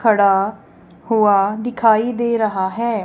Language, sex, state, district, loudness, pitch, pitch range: Hindi, female, Punjab, Kapurthala, -17 LUFS, 215 Hz, 195-230 Hz